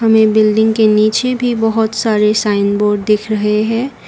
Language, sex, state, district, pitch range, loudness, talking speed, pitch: Hindi, female, Assam, Kamrup Metropolitan, 210-225 Hz, -13 LUFS, 175 wpm, 220 Hz